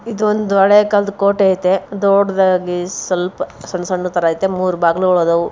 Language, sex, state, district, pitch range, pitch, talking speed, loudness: Kannada, female, Karnataka, Bijapur, 180-200 Hz, 190 Hz, 130 wpm, -15 LUFS